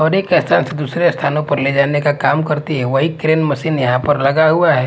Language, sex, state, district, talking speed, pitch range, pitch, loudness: Hindi, male, Punjab, Fazilka, 260 wpm, 140-160 Hz, 150 Hz, -15 LUFS